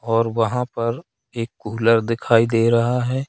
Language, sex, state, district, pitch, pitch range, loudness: Hindi, male, Madhya Pradesh, Katni, 115 Hz, 115-120 Hz, -20 LUFS